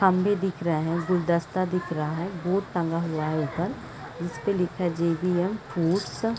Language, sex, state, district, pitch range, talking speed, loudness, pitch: Hindi, female, Chhattisgarh, Raigarh, 165-185 Hz, 190 wpm, -27 LUFS, 175 Hz